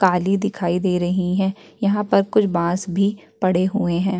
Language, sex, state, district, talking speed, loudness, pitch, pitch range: Hindi, female, Uttarakhand, Tehri Garhwal, 185 wpm, -20 LUFS, 190 Hz, 180-200 Hz